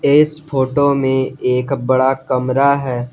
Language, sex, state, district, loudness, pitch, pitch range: Hindi, male, Jharkhand, Garhwa, -16 LUFS, 130 Hz, 130-140 Hz